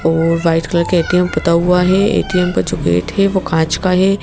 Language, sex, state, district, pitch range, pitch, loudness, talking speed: Hindi, female, Madhya Pradesh, Bhopal, 165-185 Hz, 170 Hz, -14 LUFS, 240 wpm